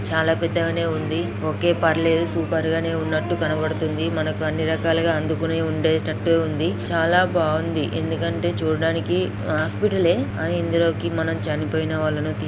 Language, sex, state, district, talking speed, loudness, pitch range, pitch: Telugu, female, Telangana, Nalgonda, 125 wpm, -22 LUFS, 155-165 Hz, 160 Hz